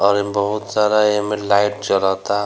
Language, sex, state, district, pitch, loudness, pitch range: Bhojpuri, male, Bihar, Gopalganj, 100 Hz, -18 LUFS, 100-105 Hz